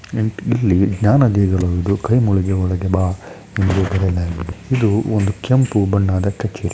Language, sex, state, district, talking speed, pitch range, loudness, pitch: Kannada, male, Karnataka, Shimoga, 55 wpm, 95-110 Hz, -17 LUFS, 100 Hz